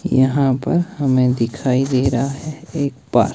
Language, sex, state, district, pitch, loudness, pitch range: Hindi, male, Himachal Pradesh, Shimla, 135 Hz, -18 LUFS, 130-145 Hz